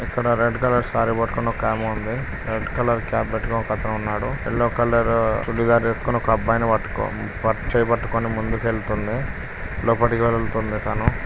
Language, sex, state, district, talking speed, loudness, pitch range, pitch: Telugu, male, Telangana, Karimnagar, 155 wpm, -22 LUFS, 110-120 Hz, 115 Hz